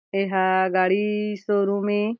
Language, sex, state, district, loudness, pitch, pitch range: Chhattisgarhi, female, Chhattisgarh, Jashpur, -22 LUFS, 200 Hz, 190-210 Hz